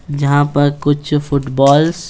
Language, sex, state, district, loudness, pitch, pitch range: Hindi, male, Bihar, Patna, -14 LUFS, 145 Hz, 140-145 Hz